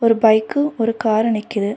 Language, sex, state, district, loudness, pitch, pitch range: Tamil, female, Tamil Nadu, Nilgiris, -17 LUFS, 225 Hz, 215-230 Hz